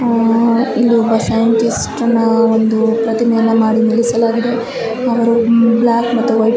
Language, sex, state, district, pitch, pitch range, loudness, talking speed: Kannada, female, Karnataka, Bellary, 230 Hz, 225-235 Hz, -13 LUFS, 130 wpm